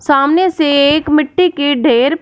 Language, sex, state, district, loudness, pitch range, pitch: Hindi, female, Punjab, Fazilka, -12 LUFS, 285-320 Hz, 295 Hz